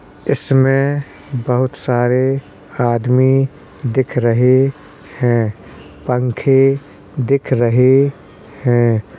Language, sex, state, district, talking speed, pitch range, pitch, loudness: Hindi, male, Uttar Pradesh, Jalaun, 70 wpm, 120-135 Hz, 125 Hz, -15 LUFS